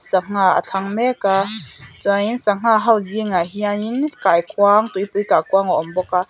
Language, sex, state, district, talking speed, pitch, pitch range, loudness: Mizo, female, Mizoram, Aizawl, 170 wpm, 200 Hz, 190-215 Hz, -18 LUFS